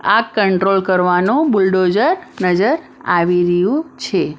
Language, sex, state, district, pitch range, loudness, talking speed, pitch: Gujarati, female, Maharashtra, Mumbai Suburban, 180-220 Hz, -15 LUFS, 110 wpm, 190 Hz